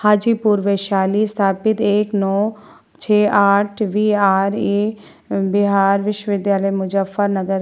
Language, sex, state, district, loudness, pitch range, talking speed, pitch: Hindi, female, Bihar, Vaishali, -17 LUFS, 195-210 Hz, 100 wpm, 205 Hz